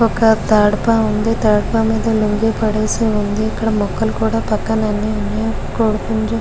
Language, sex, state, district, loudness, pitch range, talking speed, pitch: Telugu, female, Andhra Pradesh, Guntur, -16 LUFS, 205-225 Hz, 140 wpm, 215 Hz